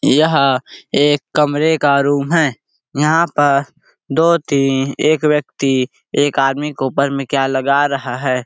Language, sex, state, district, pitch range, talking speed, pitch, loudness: Hindi, male, Chhattisgarh, Sarguja, 135-150 Hz, 150 wpm, 140 Hz, -15 LUFS